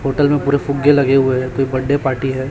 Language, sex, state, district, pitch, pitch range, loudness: Hindi, male, Chhattisgarh, Raipur, 135 Hz, 130-140 Hz, -16 LUFS